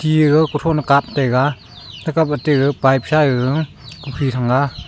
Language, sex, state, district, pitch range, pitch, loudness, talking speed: Wancho, male, Arunachal Pradesh, Longding, 130-155 Hz, 140 Hz, -16 LUFS, 150 wpm